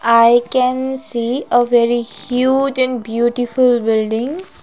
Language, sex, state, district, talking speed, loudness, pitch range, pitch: Hindi, female, Himachal Pradesh, Shimla, 115 wpm, -16 LUFS, 235-260 Hz, 245 Hz